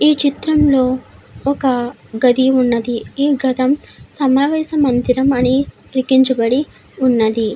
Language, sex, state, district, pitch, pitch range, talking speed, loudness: Telugu, female, Andhra Pradesh, Chittoor, 260 Hz, 250-280 Hz, 105 wpm, -16 LUFS